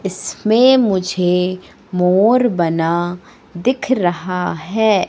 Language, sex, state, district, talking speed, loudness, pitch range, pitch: Hindi, female, Madhya Pradesh, Katni, 85 wpm, -16 LUFS, 180-220 Hz, 185 Hz